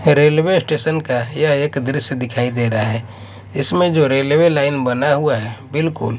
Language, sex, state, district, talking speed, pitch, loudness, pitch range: Hindi, male, Maharashtra, Mumbai Suburban, 175 wpm, 140 Hz, -17 LUFS, 120-150 Hz